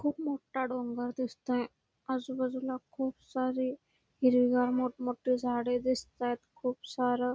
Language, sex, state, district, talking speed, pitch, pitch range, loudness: Marathi, female, Karnataka, Belgaum, 130 wpm, 255 Hz, 245-260 Hz, -33 LUFS